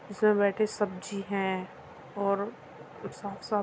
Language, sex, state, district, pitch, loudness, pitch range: Hindi, female, Uttar Pradesh, Muzaffarnagar, 200 Hz, -30 LUFS, 195-210 Hz